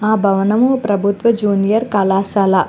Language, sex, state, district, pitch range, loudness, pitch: Telugu, female, Andhra Pradesh, Chittoor, 195-220 Hz, -15 LUFS, 205 Hz